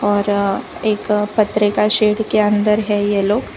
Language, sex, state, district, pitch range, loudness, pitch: Hindi, female, Gujarat, Valsad, 205-210 Hz, -16 LUFS, 210 Hz